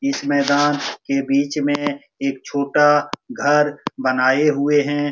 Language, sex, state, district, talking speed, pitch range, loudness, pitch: Hindi, male, Bihar, Supaul, 130 wpm, 140-145 Hz, -19 LUFS, 145 Hz